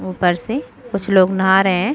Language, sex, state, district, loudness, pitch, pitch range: Hindi, female, Chhattisgarh, Bilaspur, -17 LUFS, 190 Hz, 185-215 Hz